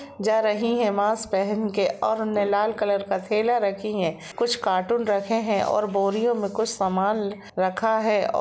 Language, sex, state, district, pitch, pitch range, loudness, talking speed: Hindi, female, Jharkhand, Jamtara, 210 Hz, 200-220 Hz, -24 LUFS, 195 wpm